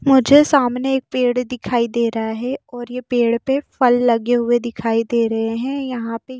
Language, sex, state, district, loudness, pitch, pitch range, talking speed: Hindi, female, Odisha, Nuapada, -18 LUFS, 245 Hz, 235-260 Hz, 195 wpm